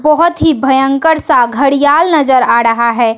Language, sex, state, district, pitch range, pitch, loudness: Hindi, female, Bihar, West Champaran, 240-310 Hz, 275 Hz, -10 LUFS